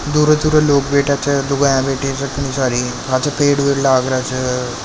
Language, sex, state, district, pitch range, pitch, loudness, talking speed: Marwari, male, Rajasthan, Nagaur, 130-140 Hz, 140 Hz, -16 LUFS, 160 wpm